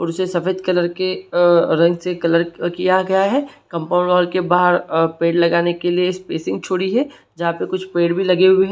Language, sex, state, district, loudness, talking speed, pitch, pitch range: Hindi, male, Jharkhand, Sahebganj, -18 LUFS, 215 wpm, 180 Hz, 170-185 Hz